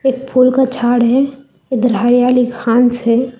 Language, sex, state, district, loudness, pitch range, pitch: Hindi, female, Telangana, Hyderabad, -13 LUFS, 240-260 Hz, 250 Hz